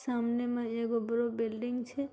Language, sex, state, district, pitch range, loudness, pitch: Angika, female, Bihar, Begusarai, 230-245 Hz, -33 LUFS, 235 Hz